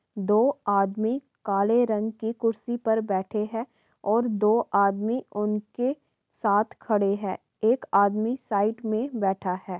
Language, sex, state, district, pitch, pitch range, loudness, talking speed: Hindi, female, Uttar Pradesh, Varanasi, 215 Hz, 200-230 Hz, -26 LUFS, 135 wpm